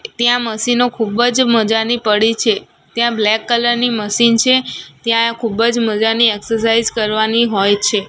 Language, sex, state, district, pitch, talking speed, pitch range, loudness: Gujarati, female, Gujarat, Gandhinagar, 230 Hz, 150 wpm, 220-240 Hz, -14 LUFS